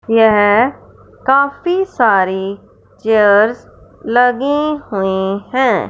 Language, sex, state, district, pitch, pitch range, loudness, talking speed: Hindi, male, Punjab, Fazilka, 225 Hz, 205-270 Hz, -14 LUFS, 70 wpm